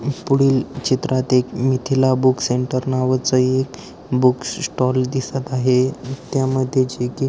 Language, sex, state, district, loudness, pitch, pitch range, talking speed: Marathi, male, Maharashtra, Aurangabad, -19 LUFS, 130 Hz, 130-135 Hz, 130 wpm